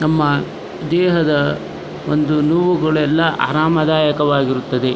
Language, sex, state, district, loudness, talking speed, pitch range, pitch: Kannada, male, Karnataka, Dharwad, -16 LUFS, 60 wpm, 145-160 Hz, 155 Hz